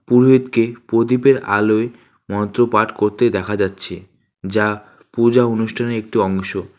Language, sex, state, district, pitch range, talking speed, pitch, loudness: Bengali, male, West Bengal, Alipurduar, 105-120 Hz, 105 wpm, 115 Hz, -17 LUFS